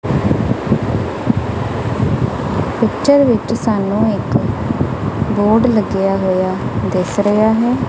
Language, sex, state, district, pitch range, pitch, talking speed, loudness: Punjabi, female, Punjab, Kapurthala, 135-220 Hz, 200 Hz, 75 wpm, -16 LUFS